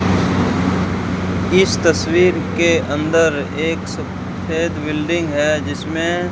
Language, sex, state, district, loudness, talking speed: Hindi, male, Rajasthan, Bikaner, -17 LUFS, 95 wpm